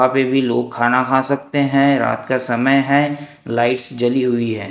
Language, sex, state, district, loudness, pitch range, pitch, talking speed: Hindi, male, Maharashtra, Gondia, -17 LUFS, 120-140 Hz, 130 Hz, 190 wpm